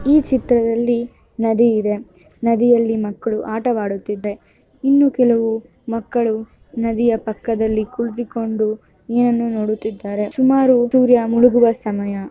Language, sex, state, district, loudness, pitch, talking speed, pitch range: Kannada, female, Karnataka, Mysore, -18 LUFS, 230 Hz, 95 wpm, 215-240 Hz